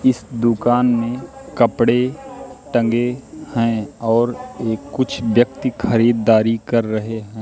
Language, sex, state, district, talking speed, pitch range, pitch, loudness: Hindi, male, Madhya Pradesh, Katni, 115 wpm, 115-125 Hz, 120 Hz, -18 LUFS